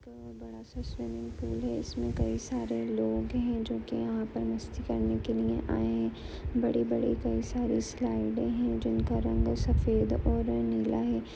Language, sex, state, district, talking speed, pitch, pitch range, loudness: Hindi, female, Chhattisgarh, Jashpur, 180 wpm, 115 Hz, 110-115 Hz, -31 LUFS